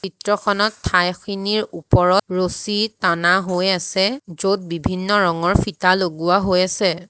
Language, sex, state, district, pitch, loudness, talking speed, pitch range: Assamese, female, Assam, Hailakandi, 185 Hz, -19 LUFS, 120 wpm, 180-205 Hz